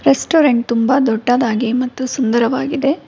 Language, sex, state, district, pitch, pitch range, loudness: Kannada, female, Karnataka, Bangalore, 255 Hz, 235-275 Hz, -15 LUFS